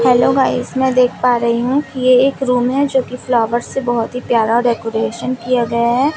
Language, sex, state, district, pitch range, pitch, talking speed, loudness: Hindi, female, Chhattisgarh, Raipur, 235-260 Hz, 250 Hz, 215 wpm, -15 LUFS